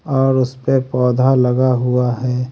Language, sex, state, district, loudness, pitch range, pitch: Hindi, male, Haryana, Rohtak, -16 LUFS, 125-130 Hz, 125 Hz